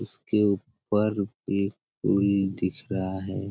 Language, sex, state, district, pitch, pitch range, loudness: Hindi, male, Jharkhand, Sahebganj, 100 Hz, 95-105 Hz, -27 LUFS